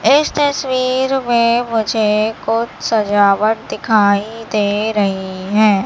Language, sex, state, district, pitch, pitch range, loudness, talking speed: Hindi, male, Madhya Pradesh, Katni, 220 Hz, 205-240 Hz, -15 LUFS, 100 wpm